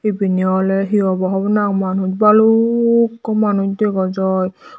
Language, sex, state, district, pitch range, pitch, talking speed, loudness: Chakma, female, Tripura, Dhalai, 190-215 Hz, 200 Hz, 150 wpm, -16 LUFS